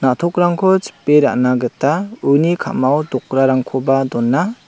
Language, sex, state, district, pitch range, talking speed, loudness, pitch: Garo, male, Meghalaya, South Garo Hills, 130-175 Hz, 105 wpm, -16 LUFS, 140 Hz